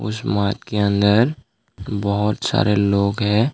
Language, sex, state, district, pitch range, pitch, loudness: Hindi, male, Tripura, West Tripura, 100-110 Hz, 105 Hz, -19 LUFS